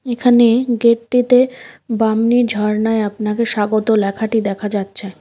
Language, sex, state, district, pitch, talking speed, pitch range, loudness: Bengali, female, West Bengal, Cooch Behar, 225 Hz, 105 wpm, 210-240 Hz, -16 LUFS